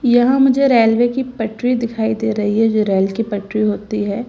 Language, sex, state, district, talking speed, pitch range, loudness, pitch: Hindi, female, Gujarat, Gandhinagar, 210 wpm, 210-245 Hz, -16 LUFS, 225 Hz